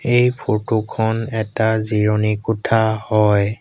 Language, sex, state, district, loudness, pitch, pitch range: Assamese, male, Assam, Sonitpur, -18 LUFS, 110 Hz, 105-115 Hz